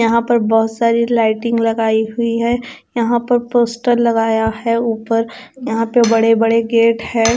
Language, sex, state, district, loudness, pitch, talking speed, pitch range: Hindi, female, Chandigarh, Chandigarh, -15 LUFS, 230 Hz, 165 wpm, 225-235 Hz